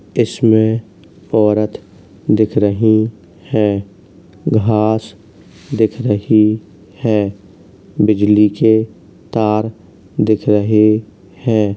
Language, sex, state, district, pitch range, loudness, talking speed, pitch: Hindi, male, Uttar Pradesh, Hamirpur, 105-110 Hz, -15 LUFS, 75 wpm, 110 Hz